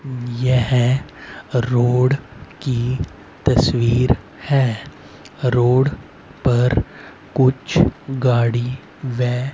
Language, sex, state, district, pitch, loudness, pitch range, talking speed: Hindi, male, Haryana, Rohtak, 125 Hz, -19 LUFS, 120-135 Hz, 65 wpm